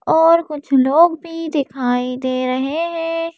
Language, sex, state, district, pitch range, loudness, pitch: Hindi, female, Madhya Pradesh, Bhopal, 260-330 Hz, -17 LUFS, 305 Hz